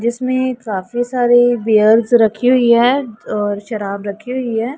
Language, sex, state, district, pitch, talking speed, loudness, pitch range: Hindi, female, Punjab, Pathankot, 235 Hz, 150 wpm, -15 LUFS, 215-250 Hz